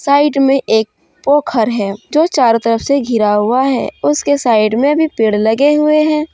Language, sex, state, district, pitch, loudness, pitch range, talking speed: Hindi, female, Jharkhand, Deoghar, 265 Hz, -13 LUFS, 220-295 Hz, 190 wpm